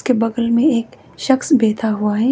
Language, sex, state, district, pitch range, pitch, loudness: Hindi, female, Arunachal Pradesh, Papum Pare, 220-255 Hz, 235 Hz, -16 LUFS